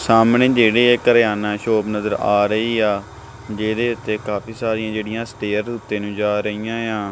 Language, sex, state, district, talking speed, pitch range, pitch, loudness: Punjabi, male, Punjab, Kapurthala, 170 wpm, 105-115 Hz, 110 Hz, -19 LUFS